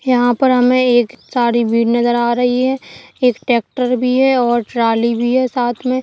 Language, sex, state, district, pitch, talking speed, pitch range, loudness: Hindi, female, Chhattisgarh, Kabirdham, 245 Hz, 210 wpm, 240-255 Hz, -15 LUFS